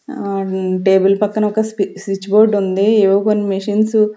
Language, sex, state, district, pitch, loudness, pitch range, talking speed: Telugu, female, Andhra Pradesh, Sri Satya Sai, 200 Hz, -15 LUFS, 195-215 Hz, 175 wpm